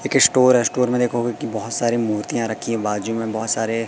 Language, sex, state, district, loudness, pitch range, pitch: Hindi, male, Madhya Pradesh, Katni, -20 LUFS, 110-125 Hz, 115 Hz